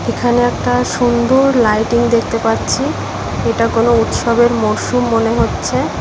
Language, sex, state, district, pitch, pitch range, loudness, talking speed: Bengali, female, West Bengal, Paschim Medinipur, 230 Hz, 215-240 Hz, -14 LUFS, 120 wpm